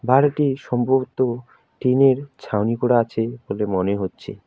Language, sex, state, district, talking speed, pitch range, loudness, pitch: Bengali, male, West Bengal, Alipurduar, 120 wpm, 115-130 Hz, -21 LUFS, 125 Hz